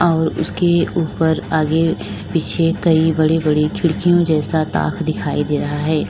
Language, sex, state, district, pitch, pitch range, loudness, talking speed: Hindi, female, Uttar Pradesh, Lalitpur, 160 Hz, 155-170 Hz, -17 LUFS, 145 wpm